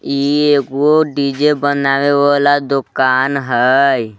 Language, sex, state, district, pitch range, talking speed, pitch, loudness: Magahi, male, Jharkhand, Palamu, 135-145 Hz, 115 wpm, 140 Hz, -13 LUFS